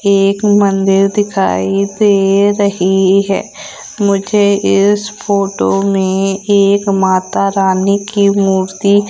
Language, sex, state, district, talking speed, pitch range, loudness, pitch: Hindi, female, Madhya Pradesh, Umaria, 100 wpm, 195-200 Hz, -12 LUFS, 200 Hz